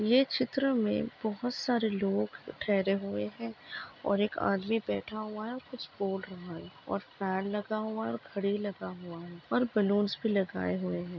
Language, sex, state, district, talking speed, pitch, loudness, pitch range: Hindi, female, Maharashtra, Dhule, 190 wpm, 200 Hz, -32 LUFS, 180-220 Hz